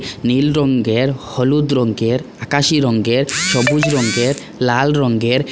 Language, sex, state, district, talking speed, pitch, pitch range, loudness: Bengali, male, Assam, Hailakandi, 120 wpm, 130 Hz, 120-140 Hz, -16 LUFS